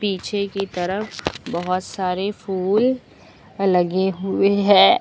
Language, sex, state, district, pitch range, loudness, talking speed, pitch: Hindi, female, Uttar Pradesh, Lucknow, 185-200 Hz, -21 LUFS, 110 wpm, 195 Hz